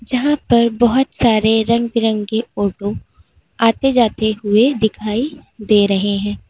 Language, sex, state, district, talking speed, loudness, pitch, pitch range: Hindi, female, Uttar Pradesh, Lalitpur, 130 wpm, -16 LUFS, 225 Hz, 210-240 Hz